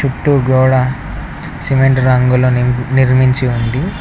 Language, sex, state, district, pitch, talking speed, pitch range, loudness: Telugu, male, Telangana, Mahabubabad, 130 Hz, 90 wpm, 125-135 Hz, -13 LUFS